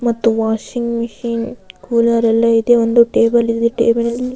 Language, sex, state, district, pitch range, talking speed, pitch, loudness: Kannada, female, Karnataka, Raichur, 230-235 Hz, 165 wpm, 235 Hz, -15 LUFS